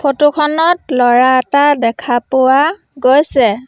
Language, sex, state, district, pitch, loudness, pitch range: Assamese, female, Assam, Sonitpur, 270 Hz, -12 LUFS, 250-295 Hz